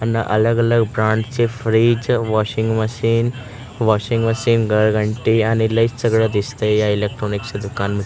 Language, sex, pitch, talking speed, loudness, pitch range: Marathi, male, 110 Hz, 120 wpm, -18 LUFS, 110-115 Hz